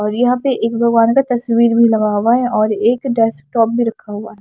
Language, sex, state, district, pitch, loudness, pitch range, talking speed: Hindi, female, Maharashtra, Washim, 230 Hz, -14 LUFS, 220-240 Hz, 245 wpm